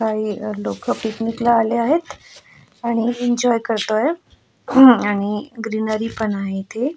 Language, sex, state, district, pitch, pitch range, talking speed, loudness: Marathi, female, Goa, North and South Goa, 225 Hz, 215-240 Hz, 120 wpm, -19 LUFS